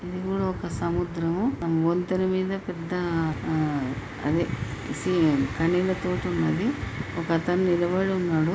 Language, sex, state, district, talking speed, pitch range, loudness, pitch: Telugu, female, Telangana, Nalgonda, 110 wpm, 155-185 Hz, -26 LUFS, 170 Hz